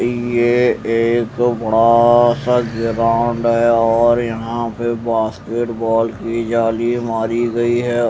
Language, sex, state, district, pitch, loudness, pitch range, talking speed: Hindi, male, Chandigarh, Chandigarh, 115 Hz, -16 LUFS, 115-120 Hz, 120 wpm